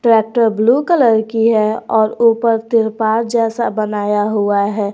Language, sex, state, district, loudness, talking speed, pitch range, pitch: Hindi, female, Jharkhand, Garhwa, -14 LUFS, 145 wpm, 215-230 Hz, 225 Hz